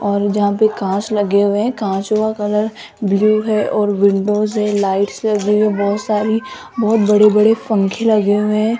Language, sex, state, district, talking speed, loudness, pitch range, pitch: Hindi, female, Rajasthan, Jaipur, 185 wpm, -15 LUFS, 205-215 Hz, 210 Hz